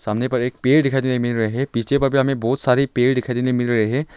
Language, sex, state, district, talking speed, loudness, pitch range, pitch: Hindi, male, Arunachal Pradesh, Longding, 300 wpm, -19 LUFS, 120-135 Hz, 125 Hz